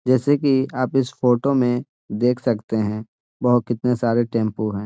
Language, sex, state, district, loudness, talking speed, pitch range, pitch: Hindi, male, Bihar, Gaya, -20 LUFS, 185 wpm, 115-130 Hz, 125 Hz